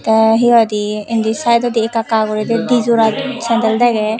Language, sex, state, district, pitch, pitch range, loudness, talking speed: Chakma, female, Tripura, West Tripura, 225 Hz, 220-235 Hz, -14 LUFS, 170 wpm